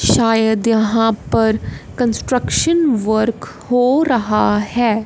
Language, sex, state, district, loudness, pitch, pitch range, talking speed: Hindi, female, Punjab, Fazilka, -16 LUFS, 225 Hz, 215-245 Hz, 95 wpm